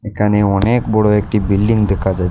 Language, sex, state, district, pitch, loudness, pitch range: Bengali, male, Assam, Hailakandi, 105 Hz, -15 LUFS, 100-110 Hz